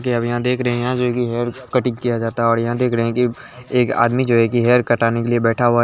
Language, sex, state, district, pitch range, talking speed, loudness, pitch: Hindi, male, Bihar, Gaya, 115-125 Hz, 265 wpm, -18 LUFS, 120 Hz